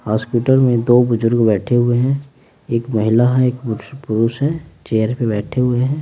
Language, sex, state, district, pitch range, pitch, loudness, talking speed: Hindi, male, Bihar, Patna, 115-130 Hz, 120 Hz, -16 LUFS, 180 wpm